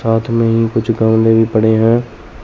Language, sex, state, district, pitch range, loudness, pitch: Hindi, male, Chandigarh, Chandigarh, 110-115 Hz, -13 LUFS, 115 Hz